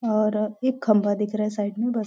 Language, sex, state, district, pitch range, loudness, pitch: Hindi, female, Maharashtra, Nagpur, 210-230 Hz, -24 LUFS, 215 Hz